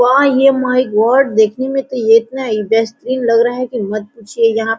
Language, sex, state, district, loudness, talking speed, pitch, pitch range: Hindi, female, Jharkhand, Sahebganj, -14 LUFS, 210 wpm, 235 Hz, 225-260 Hz